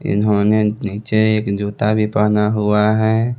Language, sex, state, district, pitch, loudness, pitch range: Hindi, male, Bihar, West Champaran, 105 Hz, -16 LUFS, 105-110 Hz